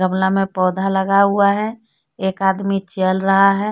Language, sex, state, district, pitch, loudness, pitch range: Hindi, female, Jharkhand, Deoghar, 195 Hz, -17 LUFS, 190-200 Hz